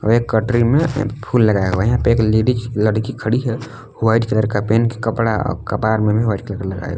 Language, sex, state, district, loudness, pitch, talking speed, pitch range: Hindi, male, Jharkhand, Palamu, -17 LUFS, 115 Hz, 250 wpm, 110-120 Hz